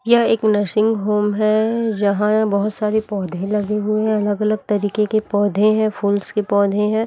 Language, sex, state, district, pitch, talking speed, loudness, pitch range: Hindi, female, Chhattisgarh, Raipur, 210 Hz, 185 wpm, -18 LUFS, 205-215 Hz